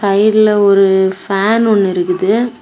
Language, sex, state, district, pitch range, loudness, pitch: Tamil, female, Tamil Nadu, Kanyakumari, 190-215 Hz, -12 LUFS, 200 Hz